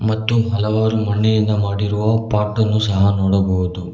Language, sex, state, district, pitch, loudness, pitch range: Kannada, male, Karnataka, Bangalore, 105 Hz, -17 LUFS, 100-110 Hz